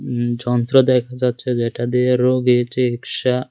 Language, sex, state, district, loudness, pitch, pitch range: Bengali, male, Tripura, West Tripura, -18 LUFS, 125 Hz, 120-125 Hz